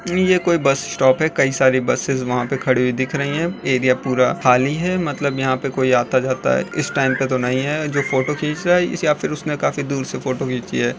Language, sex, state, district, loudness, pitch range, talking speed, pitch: Hindi, male, Uttar Pradesh, Jyotiba Phule Nagar, -19 LUFS, 130-150 Hz, 245 wpm, 135 Hz